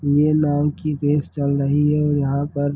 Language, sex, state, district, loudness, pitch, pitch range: Hindi, male, Bihar, Begusarai, -19 LUFS, 145 Hz, 145-150 Hz